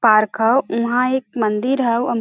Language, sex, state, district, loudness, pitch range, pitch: Bhojpuri, female, Uttar Pradesh, Varanasi, -18 LUFS, 220-250 Hz, 235 Hz